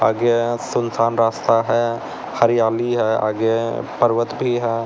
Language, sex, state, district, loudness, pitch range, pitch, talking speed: Hindi, male, Uttar Pradesh, Lalitpur, -19 LUFS, 115-120 Hz, 115 Hz, 135 wpm